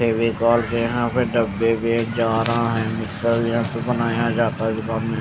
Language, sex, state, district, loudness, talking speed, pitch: Hindi, male, Chandigarh, Chandigarh, -21 LUFS, 105 wpm, 115 Hz